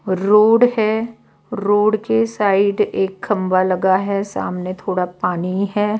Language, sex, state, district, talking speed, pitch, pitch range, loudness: Hindi, female, Bihar, Katihar, 130 wpm, 200 Hz, 185-215 Hz, -17 LUFS